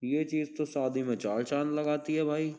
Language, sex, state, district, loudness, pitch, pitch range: Hindi, male, Uttar Pradesh, Jyotiba Phule Nagar, -31 LUFS, 150 Hz, 130-155 Hz